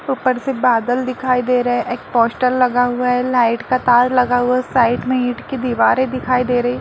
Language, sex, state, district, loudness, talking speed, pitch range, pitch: Hindi, female, Bihar, Lakhisarai, -16 LUFS, 245 wpm, 245-255 Hz, 250 Hz